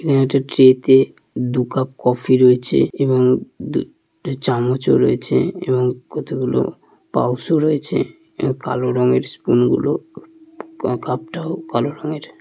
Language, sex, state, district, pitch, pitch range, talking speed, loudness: Bengali, male, West Bengal, Malda, 130 Hz, 125-155 Hz, 120 wpm, -18 LUFS